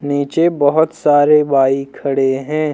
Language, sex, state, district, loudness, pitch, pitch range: Hindi, male, Jharkhand, Deoghar, -14 LUFS, 145 Hz, 140-155 Hz